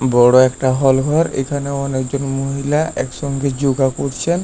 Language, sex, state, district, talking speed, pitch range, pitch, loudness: Bengali, male, West Bengal, Paschim Medinipur, 135 wpm, 130-140 Hz, 135 Hz, -17 LUFS